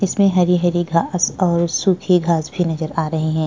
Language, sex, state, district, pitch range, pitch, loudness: Hindi, female, Uttar Pradesh, Etah, 165-180 Hz, 175 Hz, -18 LUFS